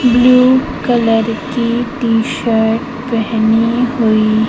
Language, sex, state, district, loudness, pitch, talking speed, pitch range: Hindi, female, Madhya Pradesh, Katni, -13 LUFS, 235 Hz, 80 wpm, 225-245 Hz